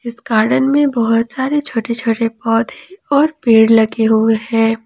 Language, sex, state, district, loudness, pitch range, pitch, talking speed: Hindi, female, Jharkhand, Ranchi, -14 LUFS, 225-265 Hz, 230 Hz, 160 wpm